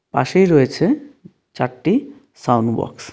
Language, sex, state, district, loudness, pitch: Bengali, male, West Bengal, Darjeeling, -18 LUFS, 185 Hz